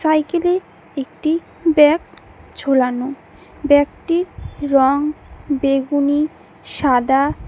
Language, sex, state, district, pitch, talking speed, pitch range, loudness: Bengali, female, West Bengal, Cooch Behar, 290 Hz, 80 wpm, 275-315 Hz, -18 LUFS